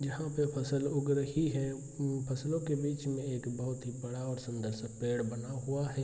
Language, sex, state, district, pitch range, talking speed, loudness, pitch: Hindi, male, Bihar, Araria, 125-140 Hz, 200 wpm, -35 LUFS, 135 Hz